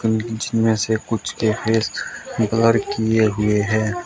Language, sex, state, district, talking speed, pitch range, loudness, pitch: Hindi, male, Uttar Pradesh, Shamli, 135 wpm, 110-115 Hz, -20 LUFS, 110 Hz